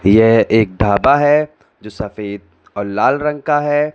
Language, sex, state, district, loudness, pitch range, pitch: Hindi, male, Uttar Pradesh, Lalitpur, -14 LUFS, 100-145 Hz, 110 Hz